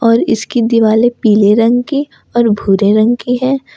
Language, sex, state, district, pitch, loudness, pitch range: Hindi, female, Jharkhand, Ranchi, 230 Hz, -12 LUFS, 215-245 Hz